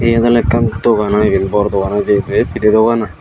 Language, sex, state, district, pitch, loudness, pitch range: Chakma, female, Tripura, Unakoti, 110 Hz, -13 LUFS, 105-115 Hz